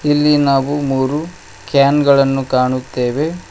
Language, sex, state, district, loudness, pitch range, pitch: Kannada, male, Karnataka, Koppal, -15 LUFS, 130-145 Hz, 140 Hz